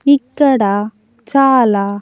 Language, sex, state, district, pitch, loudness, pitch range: Telugu, female, Andhra Pradesh, Annamaya, 250 Hz, -13 LUFS, 205-275 Hz